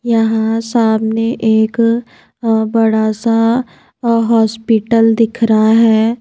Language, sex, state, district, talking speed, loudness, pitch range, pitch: Hindi, female, Madhya Pradesh, Bhopal, 105 wpm, -13 LUFS, 220-230 Hz, 225 Hz